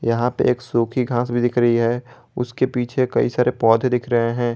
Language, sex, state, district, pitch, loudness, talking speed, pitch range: Hindi, male, Jharkhand, Garhwa, 120 Hz, -20 LUFS, 225 wpm, 120-125 Hz